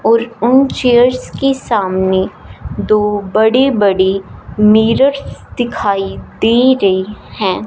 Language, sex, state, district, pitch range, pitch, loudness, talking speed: Hindi, female, Punjab, Fazilka, 195-245 Hz, 220 Hz, -13 LUFS, 100 wpm